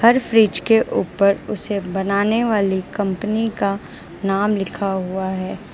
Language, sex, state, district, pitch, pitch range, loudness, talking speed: Hindi, female, Gujarat, Valsad, 200 Hz, 195-215 Hz, -19 LUFS, 135 wpm